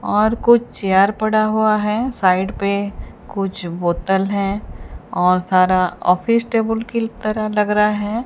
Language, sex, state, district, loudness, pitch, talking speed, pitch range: Hindi, female, Odisha, Sambalpur, -18 LUFS, 210 Hz, 145 wpm, 190-220 Hz